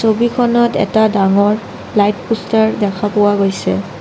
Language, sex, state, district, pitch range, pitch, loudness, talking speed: Assamese, female, Assam, Kamrup Metropolitan, 200-220 Hz, 210 Hz, -14 LUFS, 120 wpm